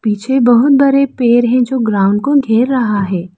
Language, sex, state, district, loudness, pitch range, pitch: Hindi, female, Arunachal Pradesh, Lower Dibang Valley, -12 LUFS, 210-265 Hz, 240 Hz